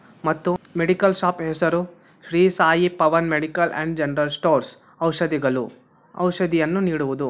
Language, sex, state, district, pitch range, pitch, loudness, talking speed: Kannada, male, Karnataka, Bellary, 155-180 Hz, 165 Hz, -21 LUFS, 115 wpm